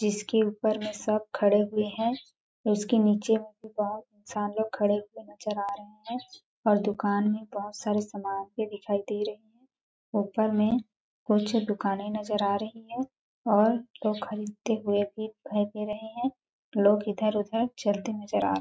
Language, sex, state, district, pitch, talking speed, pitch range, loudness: Hindi, female, Chhattisgarh, Balrampur, 210 Hz, 180 wpm, 205-220 Hz, -29 LUFS